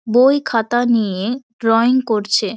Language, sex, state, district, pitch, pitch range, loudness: Bengali, female, West Bengal, Dakshin Dinajpur, 230 Hz, 220-245 Hz, -16 LUFS